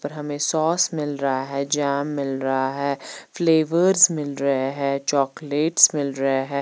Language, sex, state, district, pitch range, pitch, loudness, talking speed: Hindi, female, Chandigarh, Chandigarh, 140-155 Hz, 140 Hz, -21 LUFS, 165 wpm